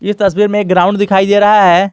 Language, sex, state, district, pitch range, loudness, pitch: Hindi, male, Jharkhand, Garhwa, 190-205 Hz, -10 LUFS, 205 Hz